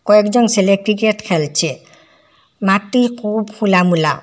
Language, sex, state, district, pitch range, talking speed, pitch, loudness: Bengali, female, Assam, Hailakandi, 180-215 Hz, 115 wpm, 210 Hz, -15 LUFS